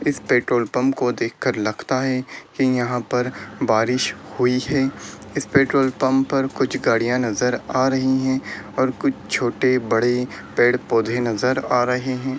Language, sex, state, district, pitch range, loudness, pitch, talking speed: Hindi, male, Bihar, Lakhisarai, 120-130 Hz, -21 LUFS, 125 Hz, 155 wpm